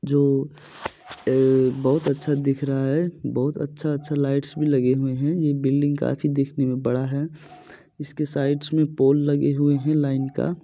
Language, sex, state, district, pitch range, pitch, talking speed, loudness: Hindi, male, Bihar, Supaul, 135-150 Hz, 145 Hz, 175 wpm, -22 LUFS